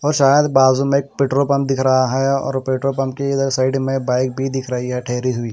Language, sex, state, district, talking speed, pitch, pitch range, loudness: Hindi, male, Haryana, Rohtak, 240 wpm, 135 Hz, 130-135 Hz, -17 LUFS